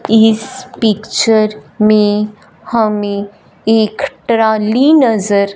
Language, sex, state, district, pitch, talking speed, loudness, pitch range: Hindi, female, Punjab, Fazilka, 215 Hz, 75 wpm, -13 LUFS, 210-225 Hz